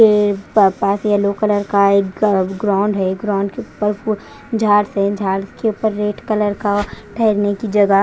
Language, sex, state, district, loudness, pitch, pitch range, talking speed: Hindi, female, Chandigarh, Chandigarh, -17 LUFS, 205 Hz, 200-210 Hz, 185 wpm